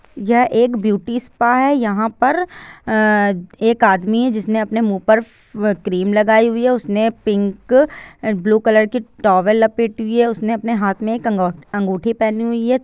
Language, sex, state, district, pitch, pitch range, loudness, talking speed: Hindi, female, Bihar, Sitamarhi, 220 Hz, 210-235 Hz, -16 LUFS, 175 wpm